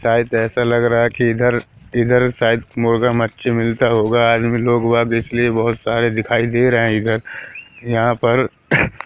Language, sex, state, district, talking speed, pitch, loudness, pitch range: Hindi, male, Madhya Pradesh, Katni, 170 wpm, 115 Hz, -16 LUFS, 115-120 Hz